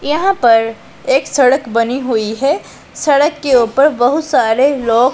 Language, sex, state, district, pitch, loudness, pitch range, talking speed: Hindi, female, Punjab, Pathankot, 260 Hz, -13 LUFS, 230-285 Hz, 150 wpm